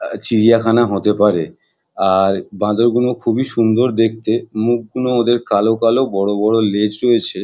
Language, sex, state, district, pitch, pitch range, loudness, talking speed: Bengali, male, West Bengal, Jalpaiguri, 115 Hz, 105-120 Hz, -15 LUFS, 155 wpm